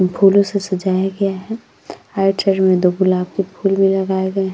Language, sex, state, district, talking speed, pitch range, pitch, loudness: Hindi, female, Uttar Pradesh, Jyotiba Phule Nagar, 170 wpm, 185-195 Hz, 195 Hz, -16 LUFS